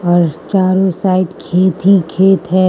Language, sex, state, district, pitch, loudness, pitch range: Hindi, female, Mizoram, Aizawl, 185 Hz, -13 LUFS, 175-190 Hz